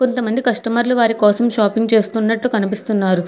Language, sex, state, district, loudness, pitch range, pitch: Telugu, female, Telangana, Hyderabad, -16 LUFS, 210-240 Hz, 225 Hz